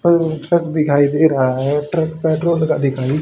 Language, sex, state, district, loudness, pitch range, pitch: Hindi, male, Haryana, Rohtak, -16 LUFS, 145-160 Hz, 155 Hz